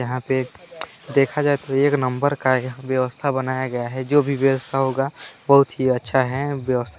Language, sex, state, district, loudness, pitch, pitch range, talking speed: Hindi, male, Chhattisgarh, Balrampur, -21 LUFS, 130 Hz, 130-140 Hz, 195 wpm